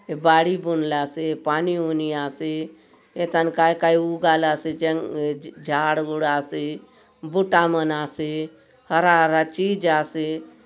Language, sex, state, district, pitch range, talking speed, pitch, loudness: Halbi, male, Chhattisgarh, Bastar, 155-165 Hz, 115 wpm, 160 Hz, -22 LUFS